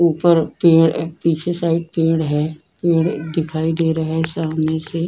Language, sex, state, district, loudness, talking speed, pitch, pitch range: Hindi, female, Bihar, Vaishali, -18 LUFS, 165 wpm, 165 Hz, 160-170 Hz